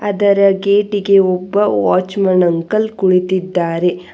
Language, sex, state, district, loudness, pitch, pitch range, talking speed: Kannada, female, Karnataka, Bangalore, -14 LUFS, 190 Hz, 180-200 Hz, 100 wpm